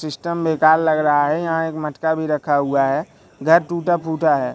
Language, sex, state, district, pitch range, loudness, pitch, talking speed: Hindi, male, Madhya Pradesh, Katni, 150-165 Hz, -18 LUFS, 160 Hz, 210 wpm